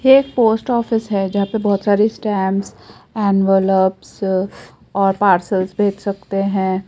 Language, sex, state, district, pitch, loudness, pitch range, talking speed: Hindi, female, Rajasthan, Jaipur, 200 Hz, -17 LUFS, 195-215 Hz, 130 wpm